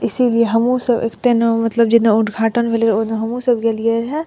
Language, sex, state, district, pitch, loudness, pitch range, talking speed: Maithili, female, Bihar, Madhepura, 230 Hz, -16 LUFS, 225-240 Hz, 195 wpm